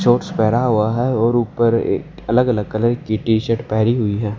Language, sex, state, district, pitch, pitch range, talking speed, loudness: Hindi, male, Haryana, Jhajjar, 115 Hz, 110-120 Hz, 220 wpm, -18 LUFS